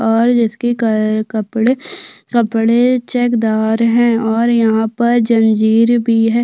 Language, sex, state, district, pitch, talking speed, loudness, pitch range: Hindi, female, Chhattisgarh, Sukma, 230 Hz, 120 wpm, -14 LUFS, 220-240 Hz